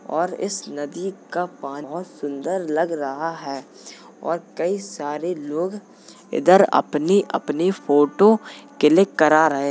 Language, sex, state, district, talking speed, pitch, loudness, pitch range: Hindi, male, Uttar Pradesh, Jalaun, 135 wpm, 165 Hz, -21 LUFS, 145-185 Hz